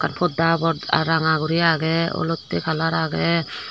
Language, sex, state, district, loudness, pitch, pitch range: Chakma, female, Tripura, Dhalai, -21 LUFS, 165 Hz, 160-165 Hz